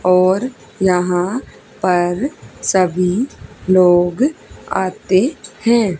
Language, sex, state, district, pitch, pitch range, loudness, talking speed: Hindi, female, Haryana, Rohtak, 185 Hz, 180-235 Hz, -16 LUFS, 70 wpm